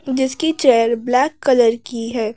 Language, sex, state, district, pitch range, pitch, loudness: Hindi, female, Madhya Pradesh, Bhopal, 230-265 Hz, 250 Hz, -17 LUFS